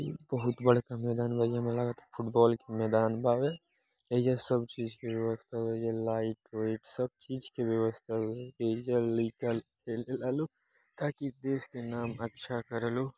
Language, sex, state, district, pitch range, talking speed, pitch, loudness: Bhojpuri, male, Bihar, Gopalganj, 115-125 Hz, 135 wpm, 120 Hz, -33 LUFS